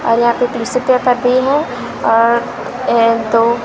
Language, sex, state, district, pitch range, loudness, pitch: Hindi, female, Chhattisgarh, Raipur, 230-250 Hz, -14 LUFS, 240 Hz